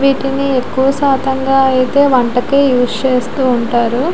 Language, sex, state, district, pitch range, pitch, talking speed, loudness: Telugu, female, Andhra Pradesh, Visakhapatnam, 250-275 Hz, 265 Hz, 115 wpm, -13 LUFS